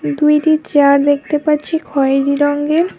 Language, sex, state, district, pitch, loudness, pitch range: Bengali, female, West Bengal, Alipurduar, 290 Hz, -14 LUFS, 280-300 Hz